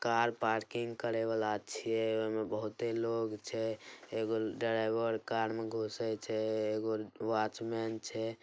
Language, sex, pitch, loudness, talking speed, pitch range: Angika, male, 110 Hz, -36 LUFS, 140 wpm, 110-115 Hz